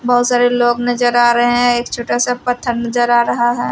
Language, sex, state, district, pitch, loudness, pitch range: Hindi, female, Haryana, Rohtak, 240 Hz, -14 LUFS, 240-245 Hz